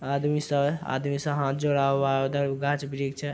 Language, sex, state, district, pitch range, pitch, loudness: Hindi, male, Bihar, Araria, 135-145 Hz, 140 Hz, -27 LUFS